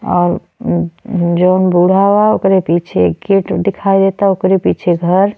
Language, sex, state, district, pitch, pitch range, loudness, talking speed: Bhojpuri, female, Uttar Pradesh, Deoria, 185 Hz, 175-195 Hz, -13 LUFS, 165 wpm